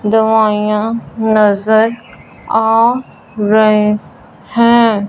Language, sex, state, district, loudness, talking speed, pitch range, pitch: Hindi, male, Punjab, Fazilka, -12 LUFS, 60 wpm, 210-225 Hz, 220 Hz